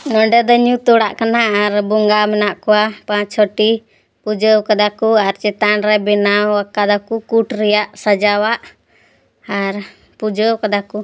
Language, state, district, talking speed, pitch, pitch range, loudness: Santali, Jharkhand, Sahebganj, 160 wpm, 210 Hz, 205-220 Hz, -14 LUFS